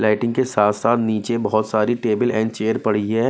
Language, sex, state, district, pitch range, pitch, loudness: Hindi, male, Bihar, Patna, 110-120 Hz, 110 Hz, -19 LUFS